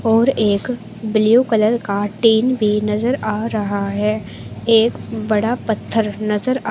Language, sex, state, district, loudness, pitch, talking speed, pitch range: Hindi, female, Uttar Pradesh, Shamli, -18 LUFS, 220 Hz, 150 wpm, 210-230 Hz